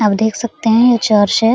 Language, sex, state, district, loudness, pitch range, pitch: Hindi, female, Bihar, Araria, -13 LUFS, 215-235 Hz, 225 Hz